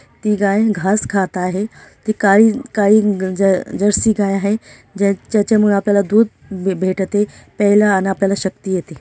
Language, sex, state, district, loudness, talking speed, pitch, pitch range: Marathi, female, Maharashtra, Dhule, -16 LUFS, 140 wpm, 200 Hz, 195-210 Hz